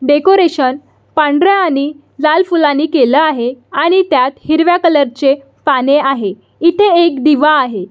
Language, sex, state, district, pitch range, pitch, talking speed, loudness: Marathi, female, Maharashtra, Solapur, 270-335 Hz, 295 Hz, 135 wpm, -12 LUFS